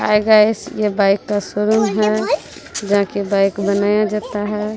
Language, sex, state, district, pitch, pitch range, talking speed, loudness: Hindi, female, Bihar, Katihar, 210 Hz, 200-215 Hz, 165 wpm, -17 LUFS